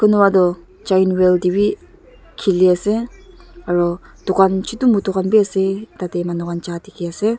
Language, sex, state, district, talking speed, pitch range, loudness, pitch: Nagamese, female, Nagaland, Dimapur, 145 wpm, 180-210 Hz, -17 LUFS, 190 Hz